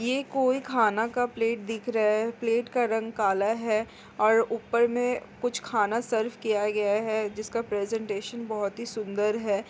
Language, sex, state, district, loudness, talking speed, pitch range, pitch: Hindi, female, Chhattisgarh, Korba, -27 LUFS, 175 wpm, 215-235 Hz, 225 Hz